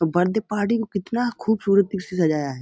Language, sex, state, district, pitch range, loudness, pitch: Hindi, male, Uttar Pradesh, Budaun, 175-220 Hz, -22 LUFS, 200 Hz